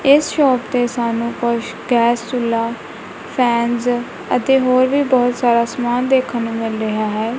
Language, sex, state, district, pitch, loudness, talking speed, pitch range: Punjabi, female, Punjab, Kapurthala, 240 Hz, -17 LUFS, 155 wpm, 235-255 Hz